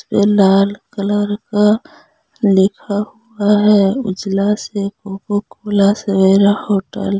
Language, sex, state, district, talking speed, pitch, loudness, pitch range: Hindi, female, Jharkhand, Garhwa, 85 wpm, 205 Hz, -15 LUFS, 195-210 Hz